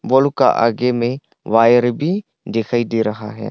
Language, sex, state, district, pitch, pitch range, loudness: Hindi, male, Arunachal Pradesh, Longding, 120 Hz, 115-130 Hz, -17 LUFS